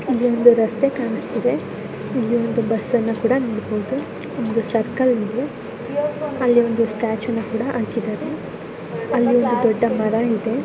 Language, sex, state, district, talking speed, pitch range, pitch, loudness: Kannada, female, Karnataka, Dharwad, 130 wpm, 225-245 Hz, 235 Hz, -20 LUFS